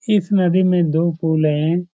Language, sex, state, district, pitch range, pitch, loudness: Hindi, male, Bihar, Supaul, 160-185 Hz, 175 Hz, -17 LUFS